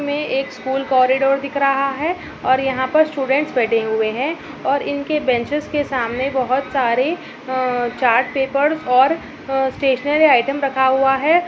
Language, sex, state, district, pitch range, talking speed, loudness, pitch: Hindi, female, Bihar, Darbhanga, 260-290 Hz, 160 wpm, -18 LUFS, 270 Hz